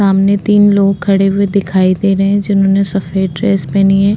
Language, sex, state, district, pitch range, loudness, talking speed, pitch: Hindi, female, Uttarakhand, Tehri Garhwal, 195-200 Hz, -12 LUFS, 200 wpm, 195 Hz